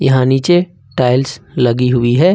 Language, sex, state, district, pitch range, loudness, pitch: Hindi, male, Jharkhand, Ranchi, 125-150 Hz, -14 LUFS, 130 Hz